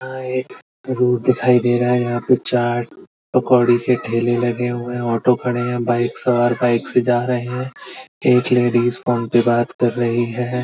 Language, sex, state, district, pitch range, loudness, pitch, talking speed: Hindi, male, Uttar Pradesh, Budaun, 120-125 Hz, -18 LUFS, 120 Hz, 195 wpm